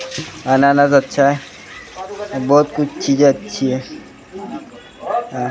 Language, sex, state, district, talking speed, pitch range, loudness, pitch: Hindi, male, Maharashtra, Gondia, 100 wpm, 135-150 Hz, -16 LUFS, 140 Hz